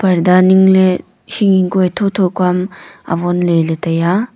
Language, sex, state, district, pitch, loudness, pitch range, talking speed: Wancho, female, Arunachal Pradesh, Longding, 185 Hz, -13 LUFS, 175-190 Hz, 180 wpm